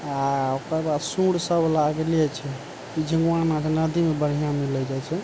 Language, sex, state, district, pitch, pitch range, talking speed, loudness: Maithili, male, Bihar, Supaul, 155 Hz, 140-165 Hz, 160 wpm, -24 LUFS